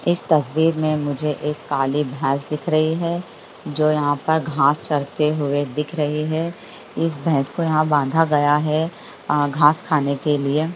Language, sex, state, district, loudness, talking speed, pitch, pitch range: Hindi, male, Bihar, Madhepura, -20 LUFS, 165 wpm, 150 Hz, 145-160 Hz